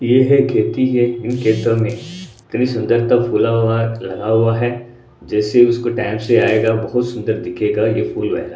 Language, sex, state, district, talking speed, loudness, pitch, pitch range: Hindi, male, Odisha, Sambalpur, 175 wpm, -16 LUFS, 120 Hz, 110-120 Hz